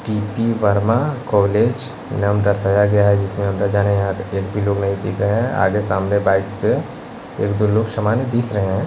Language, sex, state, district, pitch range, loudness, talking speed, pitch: Hindi, male, Bihar, West Champaran, 100-110 Hz, -17 LUFS, 195 wpm, 100 Hz